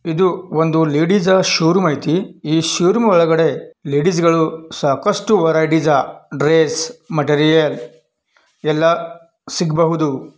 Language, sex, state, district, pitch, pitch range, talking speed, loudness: Kannada, male, Karnataka, Belgaum, 160 Hz, 155-185 Hz, 85 wpm, -16 LUFS